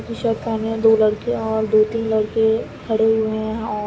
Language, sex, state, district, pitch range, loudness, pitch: Hindi, female, Uttar Pradesh, Varanasi, 220-225 Hz, -19 LUFS, 220 Hz